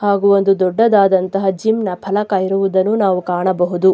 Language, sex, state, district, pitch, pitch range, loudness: Kannada, female, Karnataka, Dakshina Kannada, 195 Hz, 185-200 Hz, -15 LUFS